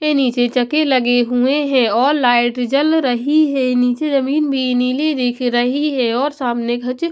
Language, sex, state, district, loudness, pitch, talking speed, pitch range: Hindi, female, Punjab, Pathankot, -16 LUFS, 255 Hz, 175 wpm, 245-290 Hz